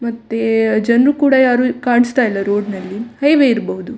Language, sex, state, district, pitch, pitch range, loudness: Kannada, female, Karnataka, Dakshina Kannada, 235 Hz, 215-255 Hz, -14 LUFS